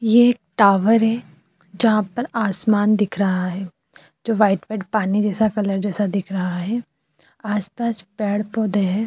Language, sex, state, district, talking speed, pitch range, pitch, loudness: Hindi, female, Uttar Pradesh, Jyotiba Phule Nagar, 160 wpm, 195-220 Hz, 210 Hz, -20 LUFS